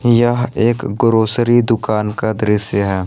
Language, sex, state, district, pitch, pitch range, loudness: Hindi, male, Jharkhand, Ranchi, 110 Hz, 105-120 Hz, -15 LUFS